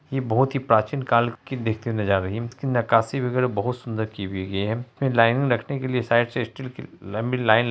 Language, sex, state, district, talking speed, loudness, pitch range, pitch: Hindi, male, Bihar, Araria, 265 wpm, -23 LUFS, 110-130 Hz, 120 Hz